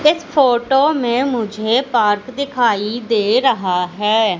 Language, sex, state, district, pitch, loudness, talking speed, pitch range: Hindi, female, Madhya Pradesh, Katni, 240 Hz, -16 LUFS, 125 wpm, 215-270 Hz